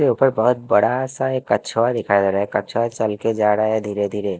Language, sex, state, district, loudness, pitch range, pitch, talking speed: Hindi, male, Himachal Pradesh, Shimla, -19 LUFS, 105-120 Hz, 110 Hz, 245 wpm